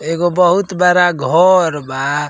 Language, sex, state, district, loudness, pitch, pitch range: Bhojpuri, male, Uttar Pradesh, Ghazipur, -13 LUFS, 175 Hz, 145-180 Hz